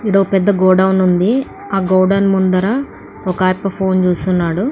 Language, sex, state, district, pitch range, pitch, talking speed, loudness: Telugu, female, Andhra Pradesh, Anantapur, 185-195 Hz, 190 Hz, 125 wpm, -14 LUFS